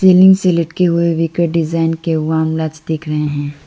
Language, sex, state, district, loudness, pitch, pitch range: Hindi, female, Arunachal Pradesh, Lower Dibang Valley, -15 LUFS, 165 Hz, 160-170 Hz